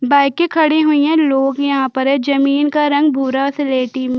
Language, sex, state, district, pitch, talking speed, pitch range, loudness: Hindi, female, Chhattisgarh, Jashpur, 280 Hz, 200 wpm, 270-295 Hz, -15 LUFS